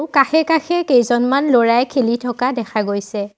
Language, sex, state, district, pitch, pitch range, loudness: Assamese, female, Assam, Sonitpur, 245 Hz, 230-280 Hz, -16 LUFS